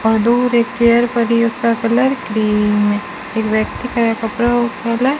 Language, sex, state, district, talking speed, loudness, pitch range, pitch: Hindi, female, Rajasthan, Bikaner, 150 wpm, -16 LUFS, 220-240 Hz, 230 Hz